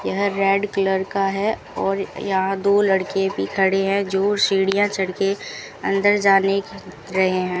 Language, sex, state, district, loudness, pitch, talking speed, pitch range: Hindi, female, Rajasthan, Bikaner, -20 LUFS, 195 Hz, 165 wpm, 190-200 Hz